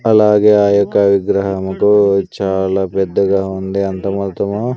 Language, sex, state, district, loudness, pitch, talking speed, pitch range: Telugu, male, Andhra Pradesh, Sri Satya Sai, -14 LUFS, 100 Hz, 125 wpm, 95-105 Hz